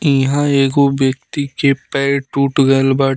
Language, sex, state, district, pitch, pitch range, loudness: Bhojpuri, male, Bihar, Muzaffarpur, 140 Hz, 135-140 Hz, -15 LUFS